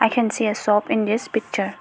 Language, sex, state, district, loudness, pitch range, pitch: English, female, Arunachal Pradesh, Lower Dibang Valley, -21 LUFS, 215-225 Hz, 220 Hz